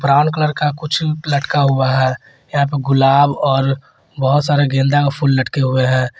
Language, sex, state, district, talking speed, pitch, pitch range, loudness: Hindi, male, Jharkhand, Garhwa, 185 wpm, 140 Hz, 135-145 Hz, -16 LUFS